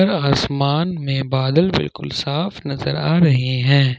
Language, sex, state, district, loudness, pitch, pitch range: Hindi, male, Jharkhand, Ranchi, -18 LUFS, 140 Hz, 135-165 Hz